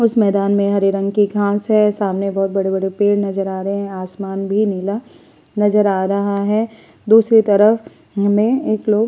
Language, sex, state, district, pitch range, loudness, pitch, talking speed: Hindi, female, Uttar Pradesh, Muzaffarnagar, 195-215 Hz, -17 LUFS, 200 Hz, 190 wpm